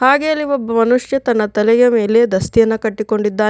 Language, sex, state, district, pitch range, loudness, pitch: Kannada, female, Karnataka, Bidar, 215-250 Hz, -15 LUFS, 230 Hz